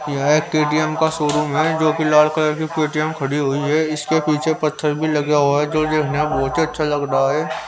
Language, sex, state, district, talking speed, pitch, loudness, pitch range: Hindi, male, Haryana, Rohtak, 275 wpm, 150 Hz, -18 LUFS, 150-155 Hz